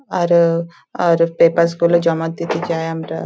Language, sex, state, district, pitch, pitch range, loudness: Bengali, female, West Bengal, Dakshin Dinajpur, 170 Hz, 165-170 Hz, -16 LUFS